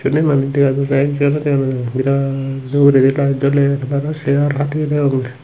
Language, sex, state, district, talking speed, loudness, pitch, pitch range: Chakma, male, Tripura, Unakoti, 175 wpm, -16 LUFS, 140 Hz, 135-145 Hz